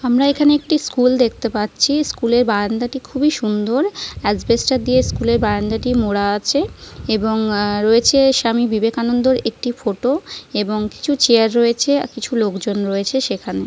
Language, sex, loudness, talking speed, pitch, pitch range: Bengali, female, -17 LUFS, 145 wpm, 235 Hz, 215-265 Hz